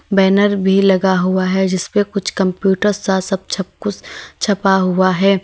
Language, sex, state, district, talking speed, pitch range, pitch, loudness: Hindi, female, Uttar Pradesh, Lalitpur, 175 wpm, 190-200 Hz, 190 Hz, -16 LUFS